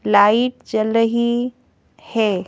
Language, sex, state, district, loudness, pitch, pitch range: Hindi, female, Madhya Pradesh, Bhopal, -18 LUFS, 230 Hz, 210-240 Hz